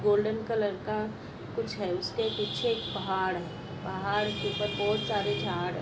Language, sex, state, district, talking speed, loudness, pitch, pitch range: Hindi, female, Maharashtra, Solapur, 175 wpm, -31 LUFS, 205 Hz, 185-210 Hz